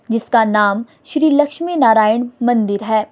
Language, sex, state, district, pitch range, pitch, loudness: Hindi, female, Himachal Pradesh, Shimla, 215-280 Hz, 230 Hz, -15 LUFS